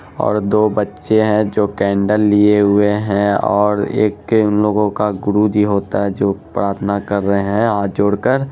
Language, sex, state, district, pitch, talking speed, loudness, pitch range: Hindi, male, Bihar, Araria, 105 Hz, 190 wpm, -15 LUFS, 100-105 Hz